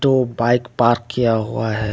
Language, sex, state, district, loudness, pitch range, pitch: Hindi, male, Tripura, West Tripura, -18 LUFS, 110-125 Hz, 120 Hz